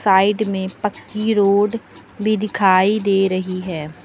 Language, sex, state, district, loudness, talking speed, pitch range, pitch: Hindi, female, Uttar Pradesh, Lucknow, -18 LUFS, 135 wpm, 190-210 Hz, 200 Hz